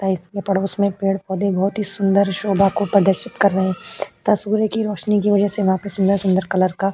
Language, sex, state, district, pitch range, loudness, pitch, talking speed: Hindi, female, Uttar Pradesh, Jalaun, 190-205 Hz, -19 LUFS, 195 Hz, 205 wpm